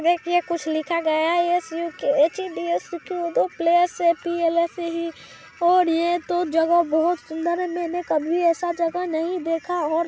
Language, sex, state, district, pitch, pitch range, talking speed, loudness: Hindi, female, Bihar, Vaishali, 340 Hz, 330-350 Hz, 135 wpm, -22 LUFS